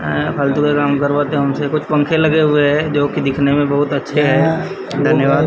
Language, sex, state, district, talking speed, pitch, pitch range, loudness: Hindi, male, Maharashtra, Gondia, 195 wpm, 145 Hz, 140-150 Hz, -15 LUFS